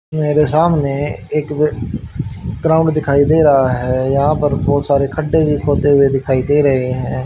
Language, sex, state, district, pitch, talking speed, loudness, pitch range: Hindi, male, Haryana, Rohtak, 145 Hz, 165 wpm, -15 LUFS, 135-150 Hz